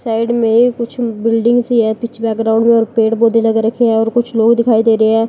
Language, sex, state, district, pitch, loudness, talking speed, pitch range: Hindi, female, Uttar Pradesh, Lalitpur, 230 Hz, -13 LUFS, 225 wpm, 225-235 Hz